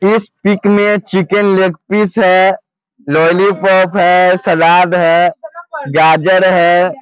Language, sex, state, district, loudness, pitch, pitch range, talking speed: Hindi, male, Bihar, Muzaffarpur, -10 LUFS, 185 Hz, 175-205 Hz, 110 wpm